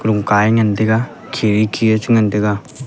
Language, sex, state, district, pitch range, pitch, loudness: Wancho, male, Arunachal Pradesh, Longding, 105-115 Hz, 110 Hz, -15 LUFS